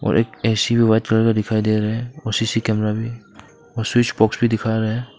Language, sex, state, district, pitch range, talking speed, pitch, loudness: Hindi, male, Arunachal Pradesh, Papum Pare, 110-115 Hz, 240 wpm, 110 Hz, -19 LUFS